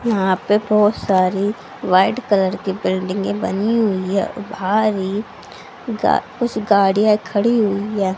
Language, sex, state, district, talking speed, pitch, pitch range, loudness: Hindi, female, Haryana, Charkhi Dadri, 130 wpm, 205 Hz, 190-215 Hz, -18 LUFS